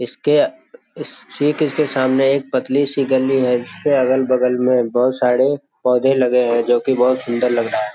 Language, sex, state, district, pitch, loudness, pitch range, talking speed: Hindi, male, Bihar, Jamui, 130 Hz, -17 LUFS, 125-140 Hz, 180 wpm